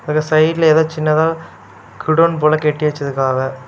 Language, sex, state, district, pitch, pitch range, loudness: Tamil, male, Tamil Nadu, Kanyakumari, 155 Hz, 135-155 Hz, -15 LUFS